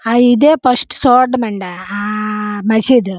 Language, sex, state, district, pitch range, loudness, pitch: Telugu, female, Andhra Pradesh, Srikakulam, 210-255 Hz, -13 LUFS, 225 Hz